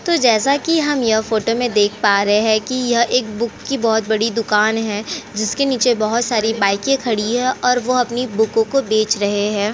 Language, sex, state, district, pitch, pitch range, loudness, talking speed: Hindi, female, Uttar Pradesh, Jyotiba Phule Nagar, 225 Hz, 215-250 Hz, -17 LUFS, 215 wpm